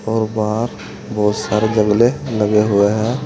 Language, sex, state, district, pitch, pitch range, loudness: Hindi, male, Uttar Pradesh, Saharanpur, 110 Hz, 105-115 Hz, -17 LUFS